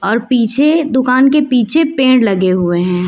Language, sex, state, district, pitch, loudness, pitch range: Hindi, female, Uttar Pradesh, Lucknow, 250 Hz, -12 LUFS, 195-275 Hz